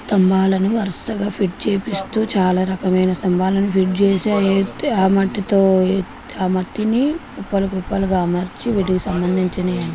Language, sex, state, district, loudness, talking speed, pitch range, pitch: Telugu, female, Telangana, Karimnagar, -18 LUFS, 115 wpm, 185-200 Hz, 195 Hz